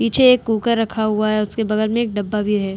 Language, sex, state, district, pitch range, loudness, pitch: Hindi, female, Bihar, Vaishali, 210-230 Hz, -18 LUFS, 215 Hz